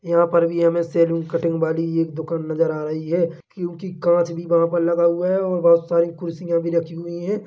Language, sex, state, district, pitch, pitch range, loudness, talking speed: Hindi, male, Chhattisgarh, Bilaspur, 170 Hz, 165-170 Hz, -20 LUFS, 235 wpm